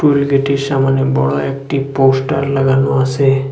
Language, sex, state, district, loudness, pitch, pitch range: Bengali, male, Assam, Hailakandi, -14 LUFS, 135 Hz, 135-140 Hz